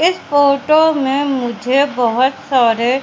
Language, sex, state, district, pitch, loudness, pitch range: Hindi, female, Madhya Pradesh, Katni, 270 Hz, -14 LUFS, 250-285 Hz